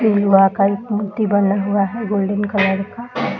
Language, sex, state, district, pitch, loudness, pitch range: Hindi, female, Bihar, Darbhanga, 205 Hz, -17 LUFS, 195-210 Hz